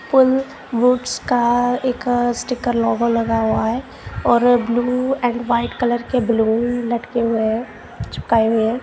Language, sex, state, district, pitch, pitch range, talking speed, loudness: Hindi, female, Punjab, Kapurthala, 240 Hz, 230-250 Hz, 150 wpm, -18 LUFS